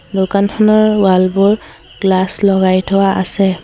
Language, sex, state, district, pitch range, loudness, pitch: Assamese, female, Assam, Sonitpur, 185-200 Hz, -12 LUFS, 195 Hz